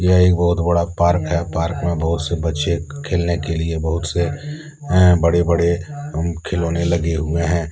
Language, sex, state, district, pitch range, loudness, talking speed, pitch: Hindi, male, Jharkhand, Deoghar, 80-85 Hz, -19 LUFS, 195 wpm, 85 Hz